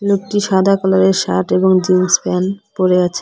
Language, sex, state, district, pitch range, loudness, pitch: Bengali, female, West Bengal, Cooch Behar, 180-195 Hz, -14 LUFS, 190 Hz